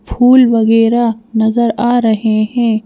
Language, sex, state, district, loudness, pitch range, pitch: Hindi, female, Madhya Pradesh, Bhopal, -12 LUFS, 220-240 Hz, 225 Hz